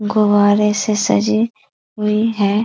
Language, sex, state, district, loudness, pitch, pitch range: Hindi, female, Bihar, East Champaran, -16 LUFS, 210 Hz, 205-215 Hz